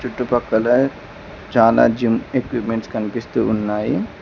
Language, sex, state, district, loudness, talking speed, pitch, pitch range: Telugu, male, Telangana, Mahabubabad, -19 LUFS, 85 wpm, 115 Hz, 105-120 Hz